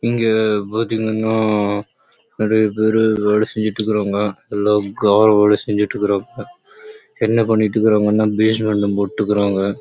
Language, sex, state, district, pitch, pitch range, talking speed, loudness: Tamil, male, Karnataka, Chamarajanagar, 110 Hz, 105-110 Hz, 80 wpm, -17 LUFS